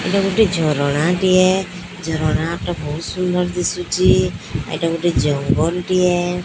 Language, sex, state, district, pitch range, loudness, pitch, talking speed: Odia, female, Odisha, Sambalpur, 160-180 Hz, -18 LUFS, 175 Hz, 110 wpm